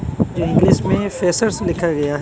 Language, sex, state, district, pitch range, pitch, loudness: Hindi, male, Odisha, Malkangiri, 165-200 Hz, 175 Hz, -17 LUFS